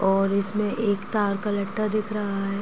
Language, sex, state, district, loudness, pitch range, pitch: Hindi, female, Uttar Pradesh, Jyotiba Phule Nagar, -25 LUFS, 200-210 Hz, 205 Hz